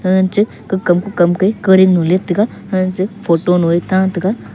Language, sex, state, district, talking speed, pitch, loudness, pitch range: Wancho, male, Arunachal Pradesh, Longding, 170 wpm, 190 Hz, -14 LUFS, 180-195 Hz